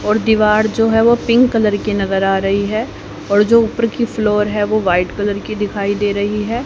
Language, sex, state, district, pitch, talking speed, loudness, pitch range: Hindi, female, Haryana, Jhajjar, 210 Hz, 235 wpm, -15 LUFS, 205-225 Hz